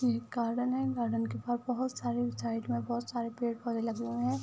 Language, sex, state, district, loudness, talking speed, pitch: Hindi, female, Uttar Pradesh, Budaun, -34 LUFS, 230 wpm, 230 Hz